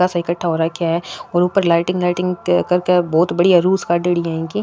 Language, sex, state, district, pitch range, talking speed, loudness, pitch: Rajasthani, female, Rajasthan, Nagaur, 170-180 Hz, 90 wpm, -17 LUFS, 175 Hz